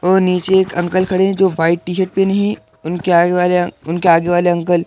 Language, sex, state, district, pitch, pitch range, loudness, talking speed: Hindi, male, Madhya Pradesh, Bhopal, 180 Hz, 170-190 Hz, -15 LUFS, 235 wpm